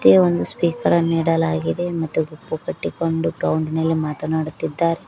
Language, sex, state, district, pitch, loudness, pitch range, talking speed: Kannada, female, Karnataka, Koppal, 160 Hz, -21 LUFS, 150-165 Hz, 130 wpm